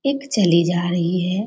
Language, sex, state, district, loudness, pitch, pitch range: Hindi, female, Bihar, Jamui, -19 LUFS, 180 Hz, 175-220 Hz